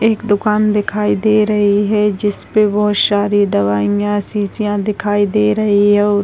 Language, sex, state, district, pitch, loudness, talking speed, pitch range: Hindi, female, Bihar, Begusarai, 205 Hz, -14 LUFS, 175 wpm, 205-210 Hz